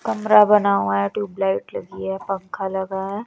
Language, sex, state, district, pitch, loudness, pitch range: Hindi, female, Bihar, West Champaran, 195 Hz, -20 LUFS, 190-210 Hz